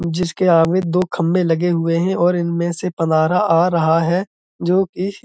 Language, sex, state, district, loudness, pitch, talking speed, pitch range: Hindi, male, Uttar Pradesh, Budaun, -17 LUFS, 175 Hz, 195 wpm, 165-180 Hz